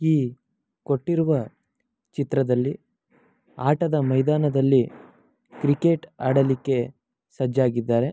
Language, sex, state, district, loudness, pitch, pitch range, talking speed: Kannada, male, Karnataka, Mysore, -23 LUFS, 135 Hz, 130-155 Hz, 60 wpm